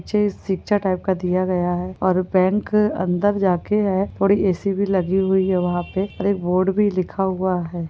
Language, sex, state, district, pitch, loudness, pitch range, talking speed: Hindi, female, Goa, North and South Goa, 190 Hz, -20 LUFS, 185-200 Hz, 195 wpm